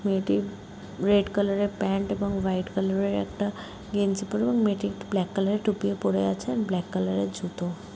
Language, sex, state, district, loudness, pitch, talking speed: Bengali, female, West Bengal, Kolkata, -27 LUFS, 195 Hz, 145 wpm